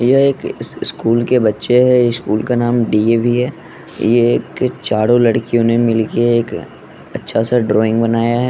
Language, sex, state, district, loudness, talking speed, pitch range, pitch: Hindi, male, Bihar, West Champaran, -15 LUFS, 170 wpm, 115-120 Hz, 120 Hz